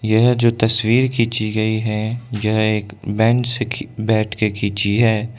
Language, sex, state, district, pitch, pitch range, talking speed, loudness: Hindi, male, Arunachal Pradesh, Lower Dibang Valley, 110 Hz, 110-115 Hz, 155 wpm, -18 LUFS